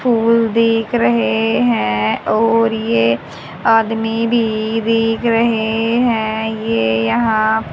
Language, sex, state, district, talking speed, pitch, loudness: Hindi, male, Haryana, Charkhi Dadri, 100 wpm, 225 Hz, -15 LUFS